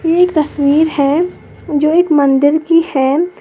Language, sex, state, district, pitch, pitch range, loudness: Hindi, female, Uttar Pradesh, Lalitpur, 310 Hz, 285-330 Hz, -13 LUFS